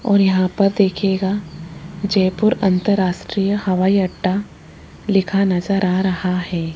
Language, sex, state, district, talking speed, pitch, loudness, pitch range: Hindi, female, Rajasthan, Jaipur, 115 wpm, 190 Hz, -18 LUFS, 185-200 Hz